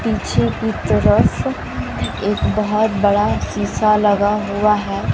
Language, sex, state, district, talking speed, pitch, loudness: Hindi, female, Bihar, West Champaran, 115 wpm, 205 Hz, -17 LUFS